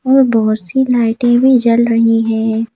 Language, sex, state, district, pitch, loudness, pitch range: Hindi, female, Madhya Pradesh, Bhopal, 230 Hz, -12 LUFS, 225-250 Hz